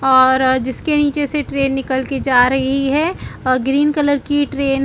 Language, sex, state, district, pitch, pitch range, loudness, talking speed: Hindi, female, Chhattisgarh, Bilaspur, 275 Hz, 260-290 Hz, -16 LUFS, 210 wpm